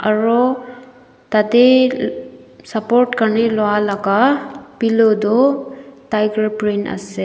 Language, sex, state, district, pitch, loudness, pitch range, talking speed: Nagamese, female, Nagaland, Dimapur, 225 Hz, -16 LUFS, 210-250 Hz, 85 wpm